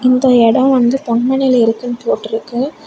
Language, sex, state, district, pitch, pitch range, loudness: Tamil, female, Tamil Nadu, Kanyakumari, 250 Hz, 235-265 Hz, -13 LUFS